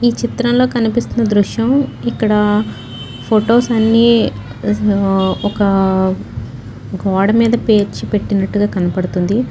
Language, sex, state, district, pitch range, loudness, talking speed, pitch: Telugu, female, Telangana, Nalgonda, 190-230 Hz, -15 LUFS, 75 wpm, 205 Hz